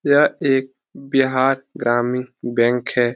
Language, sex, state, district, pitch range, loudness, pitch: Hindi, male, Bihar, Lakhisarai, 120-135 Hz, -19 LUFS, 130 Hz